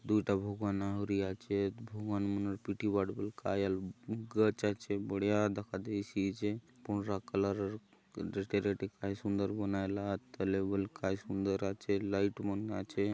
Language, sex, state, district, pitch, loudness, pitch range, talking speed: Halbi, male, Chhattisgarh, Bastar, 100 Hz, -36 LUFS, 100-105 Hz, 135 wpm